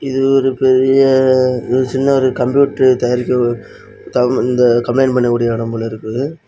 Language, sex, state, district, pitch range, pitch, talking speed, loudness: Tamil, male, Tamil Nadu, Kanyakumari, 120-135 Hz, 130 Hz, 150 wpm, -14 LUFS